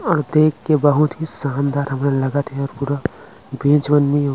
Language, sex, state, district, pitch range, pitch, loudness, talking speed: Chhattisgarhi, male, Chhattisgarh, Rajnandgaon, 140-150 Hz, 145 Hz, -18 LUFS, 150 wpm